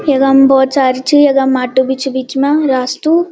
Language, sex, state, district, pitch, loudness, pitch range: Garhwali, female, Uttarakhand, Uttarkashi, 270 Hz, -11 LUFS, 260-280 Hz